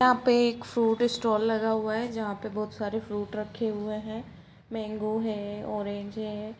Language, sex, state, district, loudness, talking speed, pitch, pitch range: Hindi, female, Jharkhand, Jamtara, -29 LUFS, 180 wpm, 215 Hz, 210-225 Hz